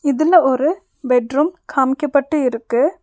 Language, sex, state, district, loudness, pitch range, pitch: Tamil, female, Tamil Nadu, Nilgiris, -17 LUFS, 260-310 Hz, 285 Hz